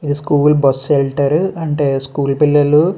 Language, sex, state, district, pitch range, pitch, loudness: Telugu, male, Andhra Pradesh, Srikakulam, 140-150 Hz, 145 Hz, -14 LUFS